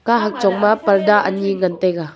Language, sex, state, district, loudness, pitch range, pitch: Wancho, female, Arunachal Pradesh, Longding, -16 LUFS, 185-210 Hz, 195 Hz